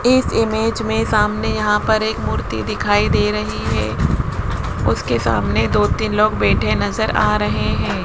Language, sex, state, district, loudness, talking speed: Hindi, female, Rajasthan, Jaipur, -18 LUFS, 165 wpm